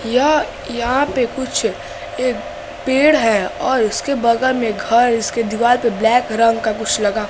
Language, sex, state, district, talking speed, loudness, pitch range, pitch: Hindi, female, Bihar, West Champaran, 165 wpm, -17 LUFS, 225-260 Hz, 235 Hz